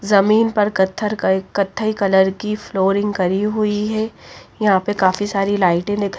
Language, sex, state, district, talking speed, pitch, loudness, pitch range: Hindi, female, Bihar, Patna, 165 wpm, 205 Hz, -18 LUFS, 190-210 Hz